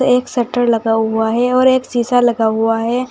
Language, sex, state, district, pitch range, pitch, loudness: Hindi, female, Uttar Pradesh, Saharanpur, 225-250 Hz, 240 Hz, -15 LUFS